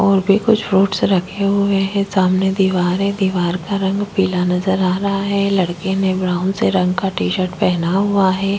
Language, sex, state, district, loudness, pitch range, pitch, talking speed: Hindi, female, Chhattisgarh, Korba, -17 LUFS, 185-200 Hz, 190 Hz, 195 wpm